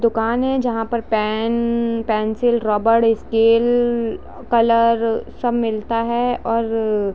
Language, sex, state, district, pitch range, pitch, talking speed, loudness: Hindi, female, Jharkhand, Jamtara, 225-235 Hz, 230 Hz, 100 wpm, -18 LUFS